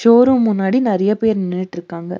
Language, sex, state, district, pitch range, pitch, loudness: Tamil, female, Tamil Nadu, Nilgiris, 180-230 Hz, 205 Hz, -16 LUFS